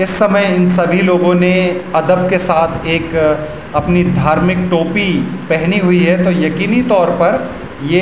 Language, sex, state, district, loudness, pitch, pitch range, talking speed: Hindi, male, Uttarakhand, Tehri Garhwal, -13 LUFS, 180 Hz, 165-185 Hz, 170 wpm